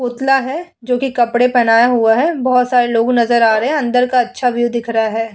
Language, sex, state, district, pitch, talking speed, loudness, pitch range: Hindi, female, Uttar Pradesh, Muzaffarnagar, 245 Hz, 225 wpm, -14 LUFS, 235-255 Hz